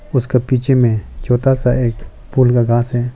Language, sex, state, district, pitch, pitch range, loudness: Hindi, male, Arunachal Pradesh, Lower Dibang Valley, 125 Hz, 120-130 Hz, -15 LUFS